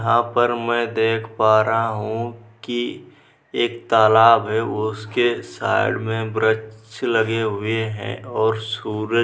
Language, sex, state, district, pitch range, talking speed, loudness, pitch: Hindi, male, Bihar, Vaishali, 110-115 Hz, 135 wpm, -20 LUFS, 110 Hz